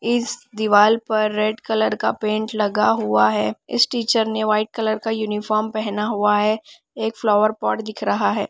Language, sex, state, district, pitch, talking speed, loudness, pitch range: Hindi, female, Odisha, Nuapada, 215 Hz, 185 wpm, -20 LUFS, 210-220 Hz